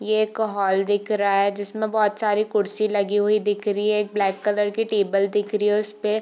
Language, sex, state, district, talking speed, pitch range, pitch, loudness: Hindi, female, Bihar, Darbhanga, 250 wpm, 205-215 Hz, 210 Hz, -22 LUFS